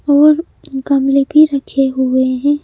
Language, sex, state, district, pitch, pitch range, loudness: Hindi, female, Madhya Pradesh, Bhopal, 275 Hz, 265-290 Hz, -13 LUFS